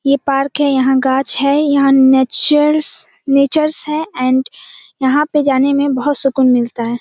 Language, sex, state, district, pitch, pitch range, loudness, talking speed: Hindi, female, Bihar, Kishanganj, 275 Hz, 265-295 Hz, -13 LUFS, 160 wpm